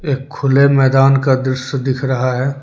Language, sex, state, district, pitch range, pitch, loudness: Hindi, male, Jharkhand, Deoghar, 130-135 Hz, 135 Hz, -14 LUFS